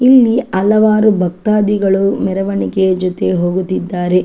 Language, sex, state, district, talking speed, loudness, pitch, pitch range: Kannada, female, Karnataka, Chamarajanagar, 85 wpm, -13 LUFS, 195 Hz, 185-215 Hz